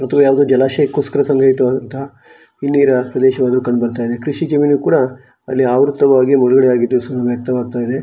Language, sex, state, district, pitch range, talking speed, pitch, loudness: Kannada, male, Karnataka, Shimoga, 125-140 Hz, 170 wpm, 130 Hz, -14 LUFS